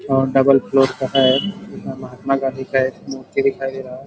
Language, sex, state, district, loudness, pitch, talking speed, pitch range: Hindi, male, Chhattisgarh, Rajnandgaon, -18 LUFS, 135 Hz, 205 wpm, 130-135 Hz